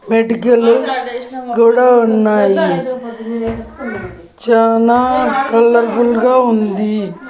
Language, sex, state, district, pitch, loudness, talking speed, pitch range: Telugu, female, Andhra Pradesh, Annamaya, 235 Hz, -13 LUFS, 60 wpm, 225-245 Hz